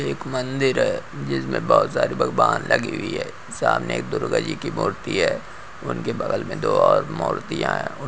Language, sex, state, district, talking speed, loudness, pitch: Hindi, male, Uttarakhand, Uttarkashi, 180 wpm, -22 LUFS, 70 Hz